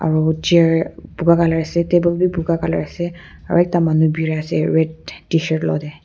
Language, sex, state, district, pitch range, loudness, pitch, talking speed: Nagamese, female, Nagaland, Kohima, 160-170 Hz, -18 LUFS, 165 Hz, 190 wpm